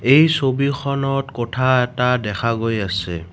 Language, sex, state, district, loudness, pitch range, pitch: Assamese, male, Assam, Kamrup Metropolitan, -19 LUFS, 115-135 Hz, 125 Hz